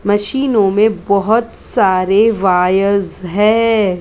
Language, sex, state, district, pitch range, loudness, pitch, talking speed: Hindi, female, Maharashtra, Mumbai Suburban, 190-220 Hz, -13 LUFS, 205 Hz, 105 wpm